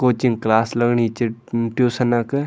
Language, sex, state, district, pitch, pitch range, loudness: Garhwali, male, Uttarakhand, Tehri Garhwal, 120 Hz, 115-125 Hz, -19 LUFS